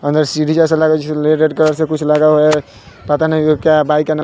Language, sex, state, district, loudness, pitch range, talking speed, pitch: Hindi, male, Bihar, West Champaran, -13 LUFS, 150-155 Hz, 300 wpm, 155 Hz